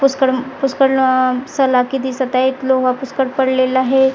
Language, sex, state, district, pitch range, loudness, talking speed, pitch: Marathi, female, Maharashtra, Gondia, 255-265 Hz, -16 LUFS, 130 wpm, 260 Hz